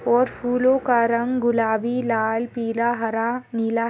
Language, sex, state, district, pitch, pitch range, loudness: Hindi, female, Maharashtra, Solapur, 235 Hz, 230-245 Hz, -22 LUFS